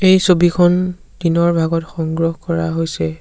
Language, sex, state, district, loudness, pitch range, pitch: Assamese, male, Assam, Sonitpur, -16 LUFS, 165-175 Hz, 165 Hz